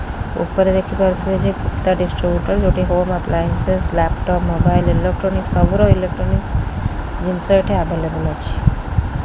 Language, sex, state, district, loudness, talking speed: Odia, female, Odisha, Khordha, -18 LUFS, 130 wpm